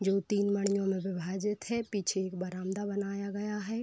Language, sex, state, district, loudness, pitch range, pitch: Hindi, female, Uttar Pradesh, Varanasi, -33 LUFS, 190-205 Hz, 200 Hz